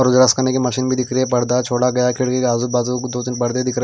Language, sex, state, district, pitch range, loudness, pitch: Hindi, male, Himachal Pradesh, Shimla, 125-130 Hz, -18 LUFS, 125 Hz